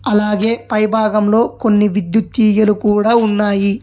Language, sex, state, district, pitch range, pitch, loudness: Telugu, male, Telangana, Hyderabad, 210-220 Hz, 215 Hz, -14 LUFS